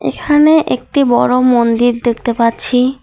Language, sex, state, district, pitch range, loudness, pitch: Bengali, female, West Bengal, Alipurduar, 235-275 Hz, -12 LUFS, 250 Hz